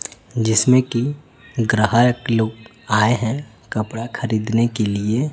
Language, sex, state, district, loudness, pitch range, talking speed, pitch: Hindi, male, Chhattisgarh, Raipur, -19 LUFS, 110-120 Hz, 115 wpm, 115 Hz